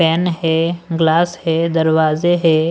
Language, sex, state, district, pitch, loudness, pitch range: Hindi, male, Punjab, Pathankot, 165 Hz, -16 LUFS, 160-170 Hz